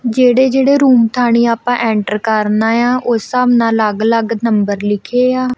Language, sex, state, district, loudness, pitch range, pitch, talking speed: Punjabi, female, Punjab, Kapurthala, -13 LUFS, 220-250 Hz, 235 Hz, 170 wpm